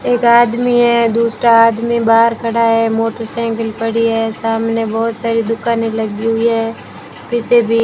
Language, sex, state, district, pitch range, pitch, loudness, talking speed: Hindi, female, Rajasthan, Bikaner, 225-235 Hz, 230 Hz, -14 LUFS, 160 wpm